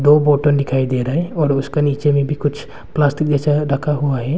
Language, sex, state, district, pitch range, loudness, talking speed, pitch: Hindi, male, Arunachal Pradesh, Longding, 140-150 Hz, -17 LUFS, 235 wpm, 145 Hz